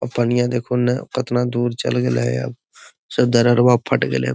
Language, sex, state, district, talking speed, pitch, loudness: Magahi, male, Bihar, Gaya, 150 wpm, 120 Hz, -19 LUFS